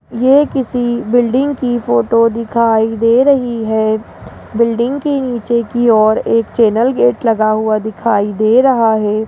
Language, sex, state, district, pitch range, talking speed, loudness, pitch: Hindi, female, Rajasthan, Jaipur, 220-245 Hz, 150 wpm, -13 LUFS, 230 Hz